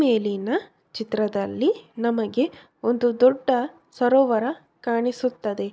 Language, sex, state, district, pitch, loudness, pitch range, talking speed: Kannada, female, Karnataka, Bellary, 245 Hz, -23 LUFS, 225-260 Hz, 85 wpm